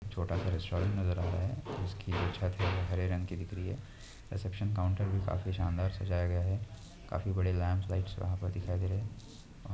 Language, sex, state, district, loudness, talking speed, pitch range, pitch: Hindi, male, Maharashtra, Nagpur, -35 LUFS, 210 wpm, 90-100 Hz, 95 Hz